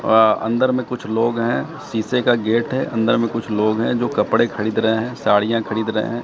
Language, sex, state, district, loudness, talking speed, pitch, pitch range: Hindi, male, Bihar, Katihar, -19 LUFS, 230 wpm, 115 Hz, 110-120 Hz